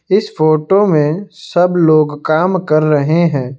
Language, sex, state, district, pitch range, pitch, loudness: Hindi, male, Assam, Kamrup Metropolitan, 155-180 Hz, 155 Hz, -13 LUFS